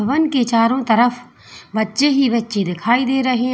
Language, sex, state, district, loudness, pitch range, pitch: Hindi, female, Uttar Pradesh, Lalitpur, -17 LUFS, 225-260 Hz, 245 Hz